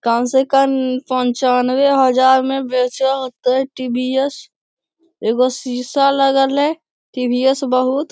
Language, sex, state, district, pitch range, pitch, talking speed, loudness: Hindi, male, Bihar, Jamui, 255-270 Hz, 260 Hz, 120 wpm, -16 LUFS